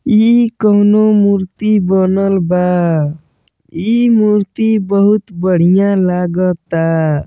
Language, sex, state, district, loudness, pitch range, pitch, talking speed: Bhojpuri, male, Uttar Pradesh, Gorakhpur, -12 LUFS, 180-215 Hz, 195 Hz, 85 wpm